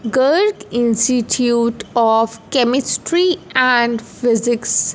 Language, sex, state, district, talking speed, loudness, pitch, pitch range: Hindi, female, Punjab, Fazilka, 75 wpm, -16 LUFS, 240 Hz, 230-260 Hz